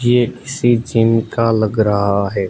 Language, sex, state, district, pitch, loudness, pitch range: Hindi, male, Gujarat, Gandhinagar, 115 Hz, -16 LUFS, 105-120 Hz